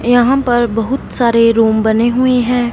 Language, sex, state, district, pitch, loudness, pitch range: Hindi, female, Punjab, Fazilka, 240 Hz, -13 LUFS, 230-245 Hz